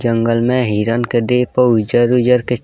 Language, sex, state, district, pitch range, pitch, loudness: Bhojpuri, male, Bihar, East Champaran, 115-125 Hz, 120 Hz, -14 LUFS